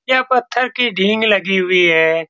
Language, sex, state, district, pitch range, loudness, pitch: Hindi, male, Bihar, Saran, 185-245 Hz, -14 LUFS, 205 Hz